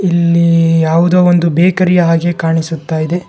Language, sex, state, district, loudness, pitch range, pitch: Kannada, male, Karnataka, Bangalore, -11 LUFS, 165-175 Hz, 170 Hz